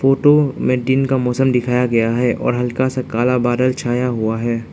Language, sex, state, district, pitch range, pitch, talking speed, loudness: Hindi, male, Arunachal Pradesh, Lower Dibang Valley, 120-130 Hz, 125 Hz, 190 wpm, -17 LUFS